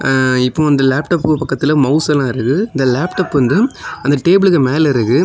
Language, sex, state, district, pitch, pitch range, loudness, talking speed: Tamil, male, Tamil Nadu, Kanyakumari, 145 Hz, 135-160 Hz, -14 LUFS, 170 wpm